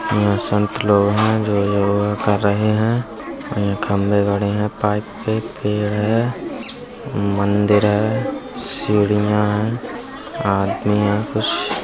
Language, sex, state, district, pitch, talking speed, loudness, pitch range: Hindi, male, Uttar Pradesh, Budaun, 105 Hz, 125 wpm, -18 LUFS, 100-110 Hz